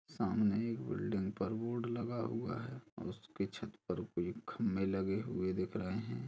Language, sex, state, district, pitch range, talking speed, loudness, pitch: Hindi, male, Chhattisgarh, Kabirdham, 95-120 Hz, 180 wpm, -39 LUFS, 115 Hz